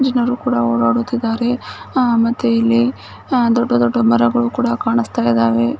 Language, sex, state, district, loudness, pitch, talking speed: Kannada, female, Karnataka, Bijapur, -16 LUFS, 230 Hz, 125 wpm